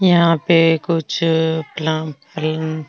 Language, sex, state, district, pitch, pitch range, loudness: Marwari, female, Rajasthan, Nagaur, 160 Hz, 155-165 Hz, -17 LUFS